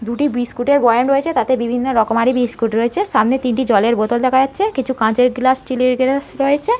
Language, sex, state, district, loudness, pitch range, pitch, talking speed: Bengali, female, West Bengal, Malda, -16 LUFS, 235-270 Hz, 255 Hz, 195 wpm